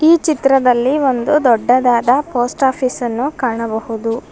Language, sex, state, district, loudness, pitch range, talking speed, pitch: Kannada, female, Karnataka, Bangalore, -15 LUFS, 240-270 Hz, 95 wpm, 250 Hz